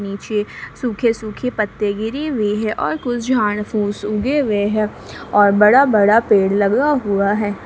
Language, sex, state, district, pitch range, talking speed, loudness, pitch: Hindi, female, Jharkhand, Palamu, 205-235 Hz, 165 wpm, -17 LUFS, 210 Hz